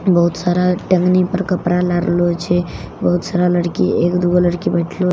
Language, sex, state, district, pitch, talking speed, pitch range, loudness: Maithili, female, Bihar, Katihar, 175 Hz, 175 wpm, 175-180 Hz, -16 LUFS